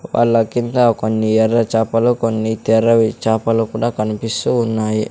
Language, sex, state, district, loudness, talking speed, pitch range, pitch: Telugu, male, Andhra Pradesh, Sri Satya Sai, -16 LUFS, 130 wpm, 110-115 Hz, 115 Hz